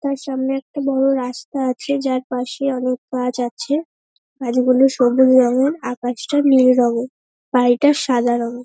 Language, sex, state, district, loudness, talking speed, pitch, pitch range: Bengali, female, West Bengal, North 24 Parganas, -18 LUFS, 145 wpm, 255 Hz, 245-275 Hz